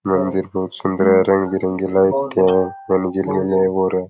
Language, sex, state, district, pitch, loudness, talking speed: Rajasthani, male, Rajasthan, Nagaur, 95 Hz, -18 LUFS, 145 wpm